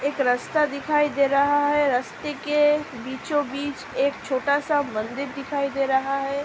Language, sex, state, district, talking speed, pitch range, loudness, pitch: Hindi, female, Uttar Pradesh, Budaun, 170 wpm, 270-290 Hz, -23 LUFS, 280 Hz